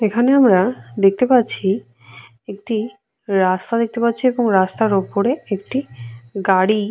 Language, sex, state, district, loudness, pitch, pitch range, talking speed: Bengali, female, West Bengal, Purulia, -17 LUFS, 200 Hz, 185-235 Hz, 115 wpm